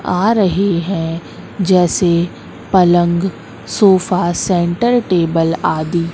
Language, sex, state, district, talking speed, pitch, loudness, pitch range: Hindi, female, Madhya Pradesh, Katni, 90 wpm, 175 Hz, -14 LUFS, 170-190 Hz